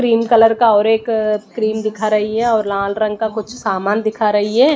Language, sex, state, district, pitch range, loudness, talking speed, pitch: Hindi, female, Odisha, Malkangiri, 210-225 Hz, -16 LUFS, 225 wpm, 220 Hz